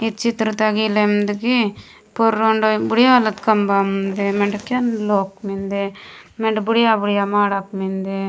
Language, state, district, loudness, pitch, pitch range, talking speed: Gondi, Chhattisgarh, Sukma, -18 LUFS, 210 Hz, 200-220 Hz, 125 wpm